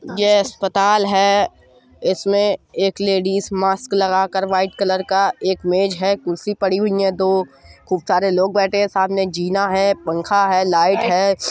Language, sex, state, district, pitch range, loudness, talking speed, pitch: Hindi, male, Uttar Pradesh, Budaun, 190-200 Hz, -18 LUFS, 185 wpm, 195 Hz